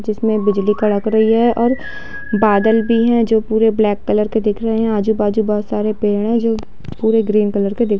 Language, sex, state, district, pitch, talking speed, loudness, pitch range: Hindi, female, Bihar, Darbhanga, 220 Hz, 210 wpm, -16 LUFS, 210-225 Hz